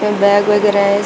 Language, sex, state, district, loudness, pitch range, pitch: Hindi, female, Uttar Pradesh, Shamli, -13 LUFS, 200-210 Hz, 205 Hz